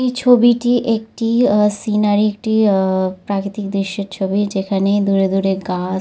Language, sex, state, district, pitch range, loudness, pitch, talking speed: Bengali, female, West Bengal, Dakshin Dinajpur, 195-220 Hz, -16 LUFS, 205 Hz, 140 wpm